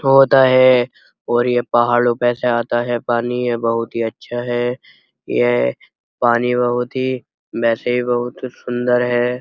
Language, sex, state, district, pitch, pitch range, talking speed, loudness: Hindi, male, Uttar Pradesh, Muzaffarnagar, 120 Hz, 120-125 Hz, 145 wpm, -17 LUFS